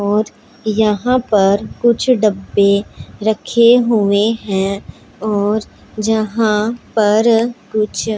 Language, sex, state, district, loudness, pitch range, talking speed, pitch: Hindi, female, Punjab, Pathankot, -15 LUFS, 205-230 Hz, 90 wpm, 215 Hz